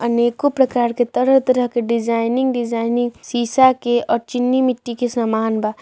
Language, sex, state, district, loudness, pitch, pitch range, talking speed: Bhojpuri, male, Bihar, Saran, -18 LUFS, 240 Hz, 235-255 Hz, 155 wpm